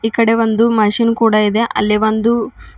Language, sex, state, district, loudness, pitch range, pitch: Kannada, female, Karnataka, Bidar, -14 LUFS, 215-230 Hz, 225 Hz